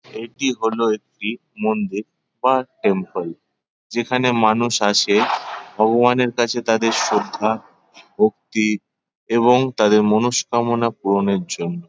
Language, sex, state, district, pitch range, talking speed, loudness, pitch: Bengali, male, West Bengal, Paschim Medinipur, 105-120 Hz, 105 wpm, -19 LUFS, 115 Hz